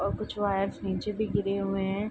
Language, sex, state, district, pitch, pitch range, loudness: Hindi, female, Bihar, Darbhanga, 200 Hz, 195-210 Hz, -30 LUFS